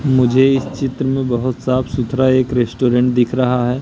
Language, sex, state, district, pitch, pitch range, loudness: Hindi, male, Madhya Pradesh, Katni, 130 Hz, 125-130 Hz, -16 LUFS